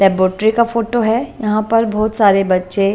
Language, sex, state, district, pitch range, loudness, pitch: Hindi, female, Punjab, Pathankot, 195-230 Hz, -15 LUFS, 215 Hz